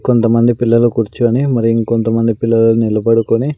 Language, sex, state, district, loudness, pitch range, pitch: Telugu, male, Andhra Pradesh, Sri Satya Sai, -13 LUFS, 115-120 Hz, 115 Hz